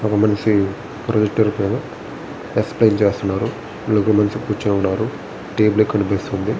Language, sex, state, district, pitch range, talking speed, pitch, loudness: Telugu, male, Andhra Pradesh, Visakhapatnam, 100-110 Hz, 110 wpm, 105 Hz, -19 LUFS